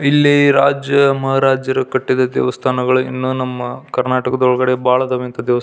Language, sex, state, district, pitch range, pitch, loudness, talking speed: Kannada, male, Karnataka, Belgaum, 125-135 Hz, 130 Hz, -15 LUFS, 140 wpm